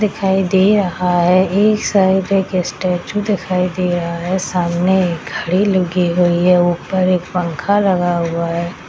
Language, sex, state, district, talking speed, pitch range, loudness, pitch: Hindi, female, Bihar, Madhepura, 160 wpm, 175-190 Hz, -16 LUFS, 185 Hz